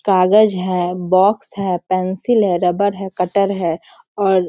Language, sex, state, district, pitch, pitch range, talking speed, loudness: Hindi, female, Bihar, Sitamarhi, 185 Hz, 180-200 Hz, 160 wpm, -17 LUFS